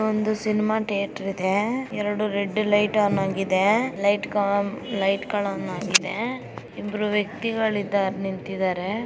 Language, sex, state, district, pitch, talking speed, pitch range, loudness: Kannada, female, Karnataka, Raichur, 205 Hz, 105 wpm, 195-215 Hz, -24 LUFS